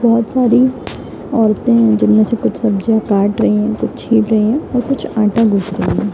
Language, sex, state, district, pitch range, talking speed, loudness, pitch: Hindi, female, Bihar, East Champaran, 210-235 Hz, 205 wpm, -14 LUFS, 220 Hz